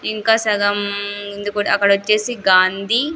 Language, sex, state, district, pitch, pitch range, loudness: Telugu, female, Andhra Pradesh, Sri Satya Sai, 205 Hz, 200-215 Hz, -17 LUFS